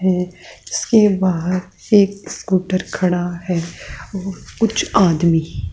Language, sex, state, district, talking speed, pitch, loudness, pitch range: Hindi, female, Rajasthan, Jaipur, 105 wpm, 185 Hz, -18 LUFS, 175-195 Hz